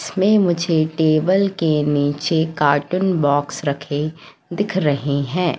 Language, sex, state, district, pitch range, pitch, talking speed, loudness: Hindi, female, Madhya Pradesh, Katni, 145-180 Hz, 155 Hz, 120 wpm, -18 LUFS